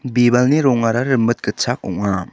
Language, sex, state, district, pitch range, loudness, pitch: Garo, male, Meghalaya, South Garo Hills, 115-125 Hz, -17 LUFS, 120 Hz